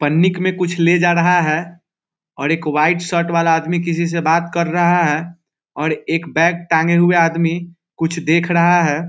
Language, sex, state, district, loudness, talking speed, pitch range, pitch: Hindi, male, Bihar, Muzaffarpur, -16 LUFS, 190 wpm, 165-175 Hz, 170 Hz